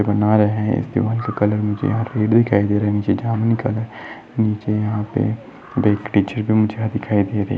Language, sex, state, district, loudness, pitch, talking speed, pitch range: Hindi, male, Maharashtra, Nagpur, -19 LUFS, 110 Hz, 190 wpm, 105-115 Hz